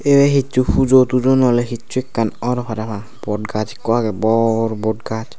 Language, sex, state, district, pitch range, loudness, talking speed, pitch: Chakma, male, Tripura, Unakoti, 110-130 Hz, -17 LUFS, 165 wpm, 115 Hz